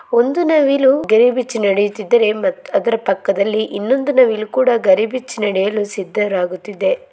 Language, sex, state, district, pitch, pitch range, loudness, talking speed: Kannada, female, Karnataka, Mysore, 220 Hz, 205-255 Hz, -16 LUFS, 120 wpm